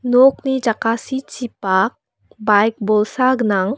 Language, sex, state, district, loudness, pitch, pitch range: Garo, female, Meghalaya, West Garo Hills, -17 LUFS, 225 Hz, 210-255 Hz